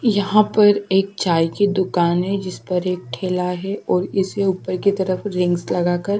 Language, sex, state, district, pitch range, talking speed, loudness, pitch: Hindi, female, Delhi, New Delhi, 180-200 Hz, 185 wpm, -19 LUFS, 190 Hz